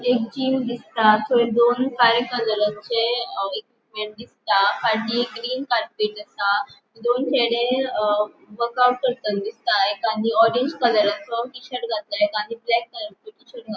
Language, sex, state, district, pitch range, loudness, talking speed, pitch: Konkani, female, Goa, North and South Goa, 215-245 Hz, -21 LUFS, 130 wpm, 235 Hz